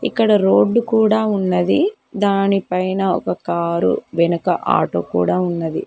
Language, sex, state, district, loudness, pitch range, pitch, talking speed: Telugu, female, Telangana, Mahabubabad, -17 LUFS, 170-215 Hz, 185 Hz, 125 wpm